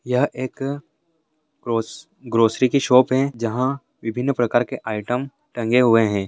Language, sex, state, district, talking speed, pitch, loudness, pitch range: Hindi, male, Maharashtra, Sindhudurg, 145 wpm, 125 Hz, -21 LUFS, 115-140 Hz